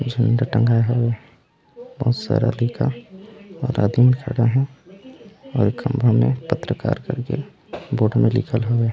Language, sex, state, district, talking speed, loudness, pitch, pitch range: Chhattisgarhi, male, Chhattisgarh, Raigarh, 150 wpm, -20 LUFS, 125 Hz, 115-140 Hz